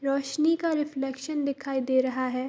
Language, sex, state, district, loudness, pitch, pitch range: Hindi, female, Bihar, East Champaran, -27 LUFS, 275 Hz, 260-300 Hz